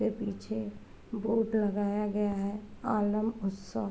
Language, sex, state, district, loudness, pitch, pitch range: Hindi, female, Uttar Pradesh, Varanasi, -32 LUFS, 210 Hz, 205-220 Hz